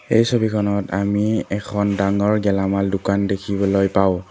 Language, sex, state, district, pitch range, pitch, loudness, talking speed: Assamese, male, Assam, Kamrup Metropolitan, 100-105 Hz, 100 Hz, -19 LUFS, 125 wpm